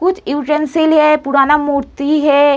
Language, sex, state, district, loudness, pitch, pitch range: Hindi, female, Uttar Pradesh, Muzaffarnagar, -13 LUFS, 300 Hz, 285-305 Hz